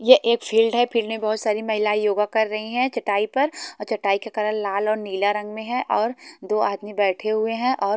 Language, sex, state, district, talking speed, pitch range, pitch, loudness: Hindi, female, Haryana, Charkhi Dadri, 240 wpm, 210-230 Hz, 215 Hz, -22 LUFS